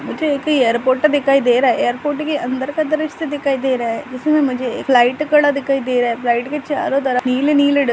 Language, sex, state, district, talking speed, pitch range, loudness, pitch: Hindi, male, Uttarakhand, Tehri Garhwal, 235 wpm, 250-295 Hz, -17 LUFS, 275 Hz